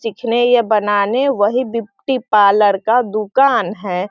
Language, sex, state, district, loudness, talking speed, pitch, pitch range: Hindi, female, Bihar, Sitamarhi, -15 LUFS, 130 wpm, 220 Hz, 205-245 Hz